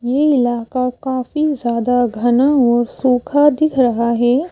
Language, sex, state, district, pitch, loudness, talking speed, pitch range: Hindi, female, Madhya Pradesh, Bhopal, 250 Hz, -16 LUFS, 130 wpm, 240-280 Hz